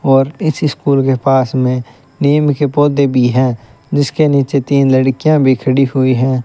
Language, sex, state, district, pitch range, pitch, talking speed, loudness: Hindi, male, Rajasthan, Bikaner, 130-145 Hz, 135 Hz, 175 wpm, -13 LUFS